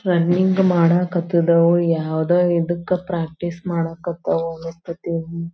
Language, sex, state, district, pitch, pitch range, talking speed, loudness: Kannada, female, Karnataka, Belgaum, 170 Hz, 165-175 Hz, 95 wpm, -19 LUFS